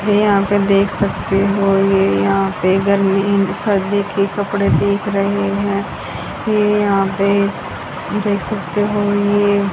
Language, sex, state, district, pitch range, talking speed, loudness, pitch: Hindi, female, Haryana, Jhajjar, 195-205 Hz, 155 wpm, -16 LUFS, 200 Hz